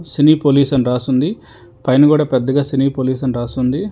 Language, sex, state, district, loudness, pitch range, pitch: Telugu, male, Telangana, Hyderabad, -15 LUFS, 130-145 Hz, 135 Hz